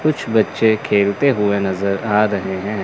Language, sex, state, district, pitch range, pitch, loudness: Hindi, male, Chandigarh, Chandigarh, 100-110 Hz, 105 Hz, -17 LUFS